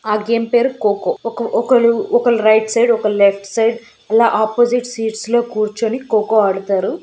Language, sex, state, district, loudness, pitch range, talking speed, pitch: Telugu, female, Andhra Pradesh, Srikakulam, -15 LUFS, 215-235 Hz, 155 wpm, 225 Hz